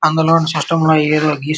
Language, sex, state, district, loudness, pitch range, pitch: Telugu, male, Andhra Pradesh, Srikakulam, -14 LUFS, 150-160 Hz, 155 Hz